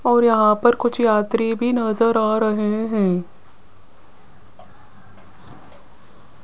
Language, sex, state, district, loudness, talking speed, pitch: Hindi, female, Rajasthan, Jaipur, -18 LUFS, 95 wpm, 215 Hz